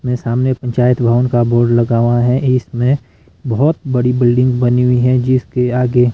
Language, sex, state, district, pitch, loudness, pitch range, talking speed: Hindi, male, Himachal Pradesh, Shimla, 125 Hz, -14 LUFS, 120-125 Hz, 175 wpm